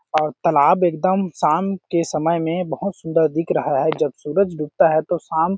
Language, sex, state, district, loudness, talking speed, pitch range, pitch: Hindi, male, Chhattisgarh, Balrampur, -19 LUFS, 195 wpm, 155-180 Hz, 165 Hz